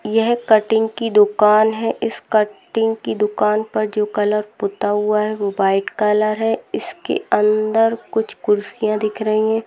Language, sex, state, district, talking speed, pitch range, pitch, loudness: Hindi, female, Bihar, Saran, 160 wpm, 210-220 Hz, 215 Hz, -18 LUFS